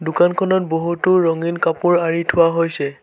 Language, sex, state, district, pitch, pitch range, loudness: Assamese, male, Assam, Sonitpur, 170 Hz, 165-175 Hz, -17 LUFS